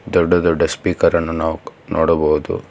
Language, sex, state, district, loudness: Kannada, male, Karnataka, Bangalore, -17 LUFS